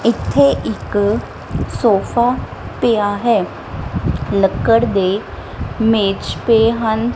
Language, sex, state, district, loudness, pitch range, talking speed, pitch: Punjabi, female, Punjab, Kapurthala, -16 LUFS, 205-235 Hz, 85 wpm, 225 Hz